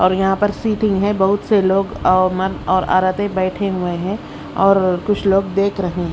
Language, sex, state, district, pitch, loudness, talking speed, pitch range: Hindi, female, Odisha, Sambalpur, 195 Hz, -17 LUFS, 205 wpm, 185-200 Hz